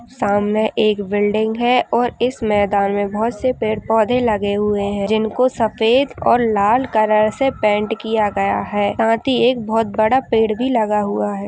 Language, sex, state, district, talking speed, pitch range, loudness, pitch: Hindi, female, Uttar Pradesh, Etah, 185 wpm, 205-235 Hz, -17 LUFS, 220 Hz